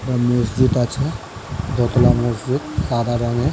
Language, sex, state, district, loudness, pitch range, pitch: Bengali, male, West Bengal, Dakshin Dinajpur, -19 LUFS, 120-130 Hz, 120 Hz